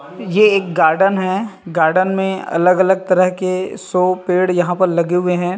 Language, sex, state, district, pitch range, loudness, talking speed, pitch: Hindi, male, Chhattisgarh, Rajnandgaon, 180-190 Hz, -15 LUFS, 170 wpm, 185 Hz